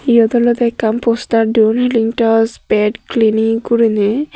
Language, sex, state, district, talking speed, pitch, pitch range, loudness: Chakma, female, Tripura, Dhalai, 140 wpm, 230 Hz, 220-235 Hz, -14 LUFS